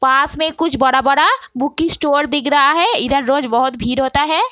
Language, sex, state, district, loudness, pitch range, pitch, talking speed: Hindi, female, Bihar, Araria, -15 LUFS, 265-295 Hz, 280 Hz, 200 wpm